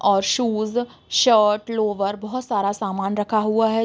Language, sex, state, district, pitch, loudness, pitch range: Hindi, female, Bihar, Sitamarhi, 215 Hz, -21 LUFS, 200-225 Hz